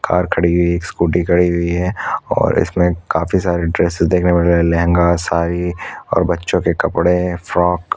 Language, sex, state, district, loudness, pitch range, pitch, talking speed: Hindi, male, Chhattisgarh, Korba, -16 LUFS, 85-90 Hz, 85 Hz, 210 wpm